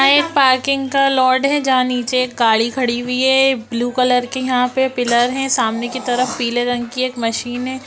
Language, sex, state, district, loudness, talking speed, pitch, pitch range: Hindi, female, Bihar, Lakhisarai, -16 LUFS, 220 wpm, 255 Hz, 245-265 Hz